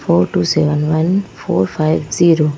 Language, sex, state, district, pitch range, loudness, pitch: Hindi, female, Madhya Pradesh, Bhopal, 150-165 Hz, -15 LUFS, 155 Hz